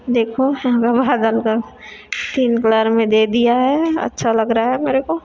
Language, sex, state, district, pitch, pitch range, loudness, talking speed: Hindi, female, Chhattisgarh, Korba, 240 Hz, 225-260 Hz, -16 LUFS, 170 wpm